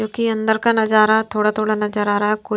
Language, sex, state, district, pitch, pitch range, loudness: Hindi, female, Himachal Pradesh, Shimla, 215 Hz, 210-220 Hz, -17 LUFS